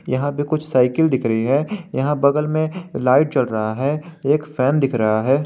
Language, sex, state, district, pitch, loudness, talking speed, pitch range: Hindi, male, Jharkhand, Garhwa, 140 Hz, -19 LUFS, 210 wpm, 130-150 Hz